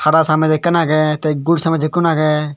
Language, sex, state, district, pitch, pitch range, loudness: Chakma, male, Tripura, Dhalai, 155 Hz, 155-165 Hz, -15 LUFS